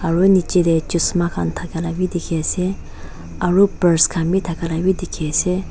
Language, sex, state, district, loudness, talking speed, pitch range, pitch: Nagamese, female, Nagaland, Dimapur, -18 LUFS, 200 wpm, 165-180 Hz, 170 Hz